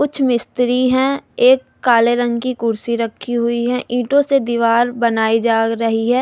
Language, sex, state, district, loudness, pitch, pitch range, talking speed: Hindi, female, Delhi, New Delhi, -16 LUFS, 240 Hz, 230-255 Hz, 175 wpm